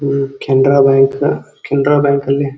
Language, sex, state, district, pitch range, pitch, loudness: Kannada, male, Karnataka, Dharwad, 135-140 Hz, 140 Hz, -13 LUFS